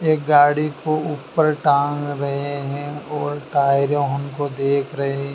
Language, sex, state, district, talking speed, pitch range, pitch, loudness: Hindi, male, Madhya Pradesh, Dhar, 135 wpm, 140-150 Hz, 145 Hz, -20 LUFS